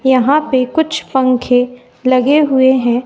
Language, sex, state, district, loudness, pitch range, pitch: Hindi, female, Bihar, West Champaran, -13 LUFS, 250-280 Hz, 260 Hz